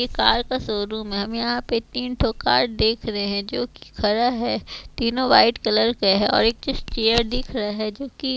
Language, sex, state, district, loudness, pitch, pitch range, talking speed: Hindi, female, Chhattisgarh, Raipur, -21 LUFS, 230 Hz, 215-245 Hz, 220 wpm